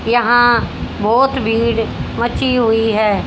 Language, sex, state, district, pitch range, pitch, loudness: Hindi, female, Haryana, Rohtak, 225-240 Hz, 235 Hz, -15 LUFS